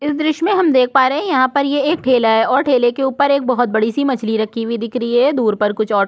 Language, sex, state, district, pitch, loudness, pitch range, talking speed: Hindi, female, Chhattisgarh, Korba, 255 Hz, -15 LUFS, 230-280 Hz, 325 wpm